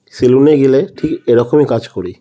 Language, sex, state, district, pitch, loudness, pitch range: Bengali, female, West Bengal, Kolkata, 130 Hz, -12 LUFS, 115-140 Hz